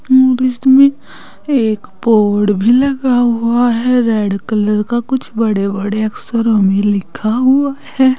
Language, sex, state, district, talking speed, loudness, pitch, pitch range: Hindi, female, Uttar Pradesh, Saharanpur, 130 wpm, -13 LUFS, 230 Hz, 210-260 Hz